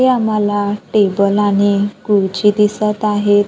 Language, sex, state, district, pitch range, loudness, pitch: Marathi, female, Maharashtra, Gondia, 205-210 Hz, -15 LUFS, 205 Hz